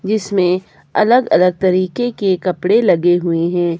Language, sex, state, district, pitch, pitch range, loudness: Hindi, male, Himachal Pradesh, Shimla, 185 Hz, 175-210 Hz, -15 LUFS